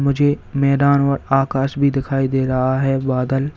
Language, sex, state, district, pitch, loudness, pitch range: Hindi, male, Uttar Pradesh, Lalitpur, 135 Hz, -18 LUFS, 135-140 Hz